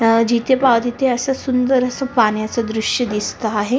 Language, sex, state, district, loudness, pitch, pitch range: Marathi, female, Maharashtra, Sindhudurg, -17 LUFS, 240 Hz, 225-260 Hz